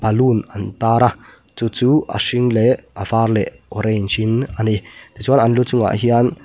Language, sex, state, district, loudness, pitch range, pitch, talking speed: Mizo, male, Mizoram, Aizawl, -17 LUFS, 110-125 Hz, 115 Hz, 215 wpm